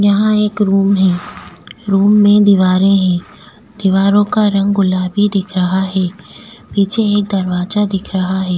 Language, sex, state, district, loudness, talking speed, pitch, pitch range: Hindi, female, Goa, North and South Goa, -13 LUFS, 145 wpm, 195 Hz, 190-205 Hz